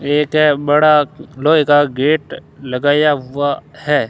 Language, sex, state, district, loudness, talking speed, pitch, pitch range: Hindi, male, Rajasthan, Bikaner, -14 LUFS, 115 wpm, 145 Hz, 145-150 Hz